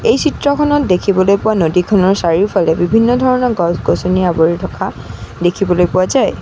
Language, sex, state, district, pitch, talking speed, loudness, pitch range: Assamese, female, Assam, Sonitpur, 185 Hz, 130 wpm, -13 LUFS, 175-230 Hz